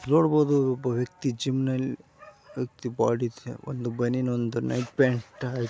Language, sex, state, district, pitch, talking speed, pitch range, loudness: Kannada, male, Karnataka, Gulbarga, 125 Hz, 115 wpm, 120-135 Hz, -27 LUFS